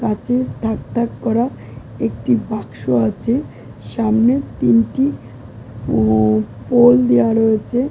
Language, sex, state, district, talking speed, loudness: Bengali, female, West Bengal, Jalpaiguri, 115 wpm, -17 LUFS